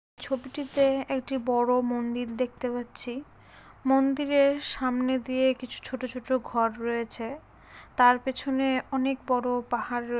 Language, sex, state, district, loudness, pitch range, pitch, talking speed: Bengali, female, West Bengal, Malda, -27 LUFS, 245-270 Hz, 255 Hz, 120 wpm